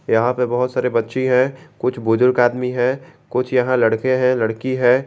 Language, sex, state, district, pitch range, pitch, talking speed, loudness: Hindi, male, Jharkhand, Garhwa, 120-130 Hz, 125 Hz, 165 wpm, -18 LUFS